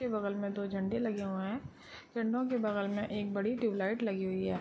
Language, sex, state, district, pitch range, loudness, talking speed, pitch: Hindi, female, Bihar, Gopalganj, 200-230 Hz, -35 LUFS, 260 wpm, 205 Hz